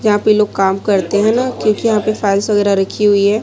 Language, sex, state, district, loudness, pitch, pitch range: Hindi, female, Chhattisgarh, Raipur, -14 LUFS, 210 Hz, 200-215 Hz